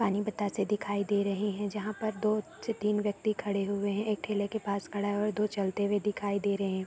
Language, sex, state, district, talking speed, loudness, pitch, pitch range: Hindi, female, Uttar Pradesh, Deoria, 245 wpm, -32 LUFS, 205 Hz, 200-210 Hz